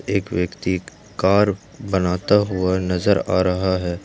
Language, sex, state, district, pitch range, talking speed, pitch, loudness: Hindi, male, Jharkhand, Ranchi, 90-100 Hz, 135 wpm, 95 Hz, -20 LUFS